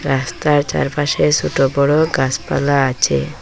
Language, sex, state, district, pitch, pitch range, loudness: Bengali, female, Assam, Hailakandi, 140 Hz, 130-145 Hz, -16 LUFS